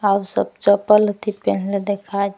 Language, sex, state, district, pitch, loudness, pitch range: Magahi, female, Jharkhand, Palamu, 200 Hz, -19 LUFS, 200-205 Hz